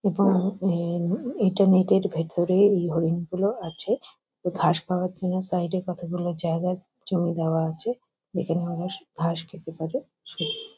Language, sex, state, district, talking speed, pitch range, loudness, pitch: Bengali, female, West Bengal, Kolkata, 150 wpm, 170-195 Hz, -25 LUFS, 180 Hz